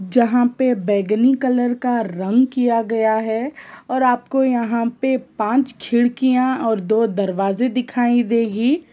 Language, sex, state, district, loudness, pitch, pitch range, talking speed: Hindi, female, Jharkhand, Sahebganj, -18 LUFS, 240 Hz, 225-255 Hz, 135 wpm